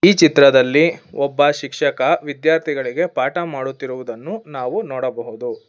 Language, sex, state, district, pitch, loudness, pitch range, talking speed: Kannada, female, Karnataka, Bangalore, 150 Hz, -18 LUFS, 140-185 Hz, 95 wpm